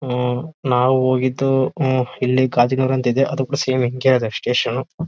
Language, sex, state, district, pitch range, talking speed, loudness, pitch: Kannada, male, Karnataka, Bellary, 125-130 Hz, 175 wpm, -18 LUFS, 130 Hz